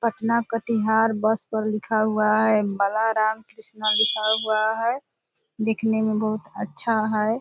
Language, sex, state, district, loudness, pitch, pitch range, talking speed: Hindi, female, Bihar, Purnia, -23 LUFS, 220 Hz, 215-225 Hz, 145 wpm